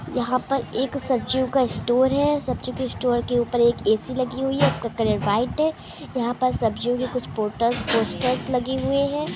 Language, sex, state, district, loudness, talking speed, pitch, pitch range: Hindi, female, Andhra Pradesh, Chittoor, -23 LUFS, 190 wpm, 255 Hz, 235-265 Hz